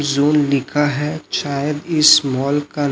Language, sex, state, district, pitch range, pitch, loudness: Hindi, male, Chhattisgarh, Raipur, 140-150 Hz, 145 Hz, -16 LUFS